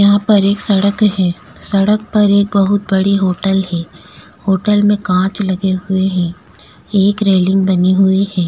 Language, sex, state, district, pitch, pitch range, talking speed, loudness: Hindi, female, Goa, North and South Goa, 195 Hz, 185-200 Hz, 165 wpm, -14 LUFS